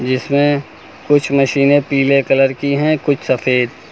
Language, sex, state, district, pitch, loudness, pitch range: Hindi, male, Uttar Pradesh, Lucknow, 140 Hz, -15 LUFS, 135-145 Hz